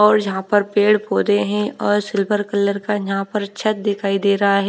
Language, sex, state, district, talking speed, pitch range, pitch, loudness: Hindi, female, Odisha, Nuapada, 215 wpm, 200-210 Hz, 205 Hz, -18 LUFS